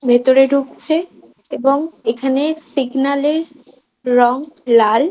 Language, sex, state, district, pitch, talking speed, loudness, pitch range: Bengali, female, West Bengal, Kolkata, 275 Hz, 95 wpm, -16 LUFS, 250-295 Hz